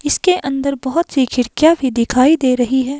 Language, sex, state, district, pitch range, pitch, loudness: Hindi, female, Himachal Pradesh, Shimla, 255-295 Hz, 270 Hz, -15 LUFS